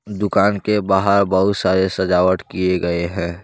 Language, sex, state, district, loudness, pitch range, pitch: Hindi, male, Jharkhand, Deoghar, -17 LUFS, 90-100 Hz, 95 Hz